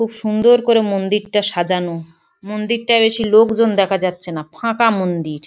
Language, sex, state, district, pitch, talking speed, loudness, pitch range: Bengali, female, West Bengal, Paschim Medinipur, 210 Hz, 140 wpm, -16 LUFS, 180-225 Hz